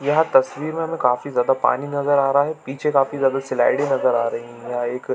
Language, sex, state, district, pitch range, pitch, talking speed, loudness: Hindi, male, Chhattisgarh, Bilaspur, 125-145 Hz, 135 Hz, 235 wpm, -20 LUFS